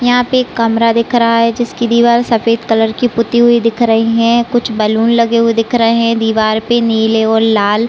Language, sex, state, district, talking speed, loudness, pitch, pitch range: Hindi, female, Chhattisgarh, Raigarh, 220 wpm, -12 LUFS, 230 Hz, 225-235 Hz